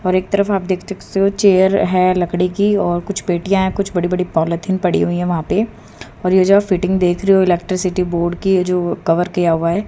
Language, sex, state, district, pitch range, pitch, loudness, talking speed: Hindi, female, Haryana, Rohtak, 175-195 Hz, 185 Hz, -16 LUFS, 230 wpm